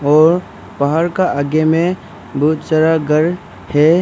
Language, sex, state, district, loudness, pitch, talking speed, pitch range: Hindi, male, Arunachal Pradesh, Papum Pare, -15 LUFS, 155 Hz, 135 wpm, 145-170 Hz